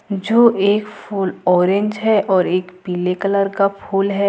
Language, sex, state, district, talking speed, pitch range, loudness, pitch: Hindi, female, Jharkhand, Ranchi, 170 wpm, 185-205 Hz, -17 LUFS, 195 Hz